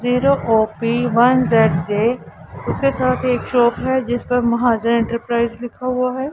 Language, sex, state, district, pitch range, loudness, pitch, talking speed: Hindi, female, Punjab, Pathankot, 230-255 Hz, -17 LUFS, 240 Hz, 170 wpm